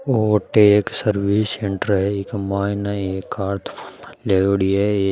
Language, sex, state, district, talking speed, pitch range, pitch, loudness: Marwari, male, Rajasthan, Nagaur, 130 wpm, 100-105 Hz, 100 Hz, -19 LUFS